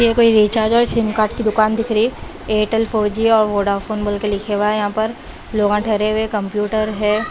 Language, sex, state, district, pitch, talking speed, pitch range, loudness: Hindi, female, Bihar, West Champaran, 215 Hz, 240 wpm, 210-220 Hz, -17 LUFS